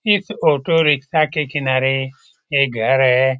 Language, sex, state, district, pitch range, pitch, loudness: Hindi, male, Bihar, Lakhisarai, 130-155 Hz, 140 Hz, -17 LUFS